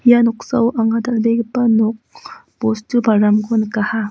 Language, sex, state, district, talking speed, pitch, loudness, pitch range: Garo, female, Meghalaya, West Garo Hills, 100 wpm, 225 Hz, -16 LUFS, 220-235 Hz